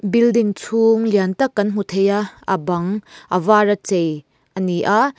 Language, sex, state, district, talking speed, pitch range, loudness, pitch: Mizo, female, Mizoram, Aizawl, 185 wpm, 185-215 Hz, -18 LUFS, 200 Hz